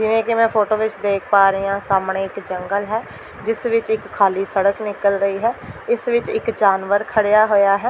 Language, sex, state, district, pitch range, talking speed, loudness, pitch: Punjabi, female, Delhi, New Delhi, 195-225 Hz, 215 wpm, -18 LUFS, 205 Hz